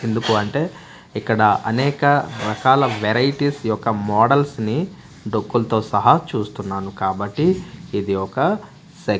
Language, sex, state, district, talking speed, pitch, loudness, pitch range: Telugu, male, Andhra Pradesh, Manyam, 100 wpm, 115 Hz, -19 LUFS, 105-145 Hz